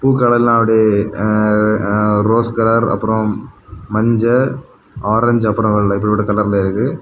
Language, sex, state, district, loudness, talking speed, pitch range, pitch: Tamil, male, Tamil Nadu, Kanyakumari, -14 LUFS, 105 wpm, 105-115 Hz, 110 Hz